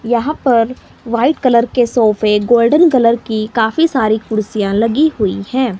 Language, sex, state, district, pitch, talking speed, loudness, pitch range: Hindi, male, Himachal Pradesh, Shimla, 235 Hz, 155 wpm, -13 LUFS, 215-255 Hz